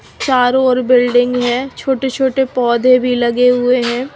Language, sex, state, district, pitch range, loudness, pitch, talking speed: Hindi, female, Chandigarh, Chandigarh, 245-260 Hz, -13 LUFS, 250 Hz, 160 wpm